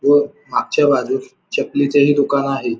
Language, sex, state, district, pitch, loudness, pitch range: Marathi, male, Maharashtra, Pune, 145 Hz, -17 LUFS, 140-145 Hz